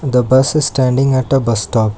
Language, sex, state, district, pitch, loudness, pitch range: English, male, Karnataka, Bangalore, 130 Hz, -14 LUFS, 120-135 Hz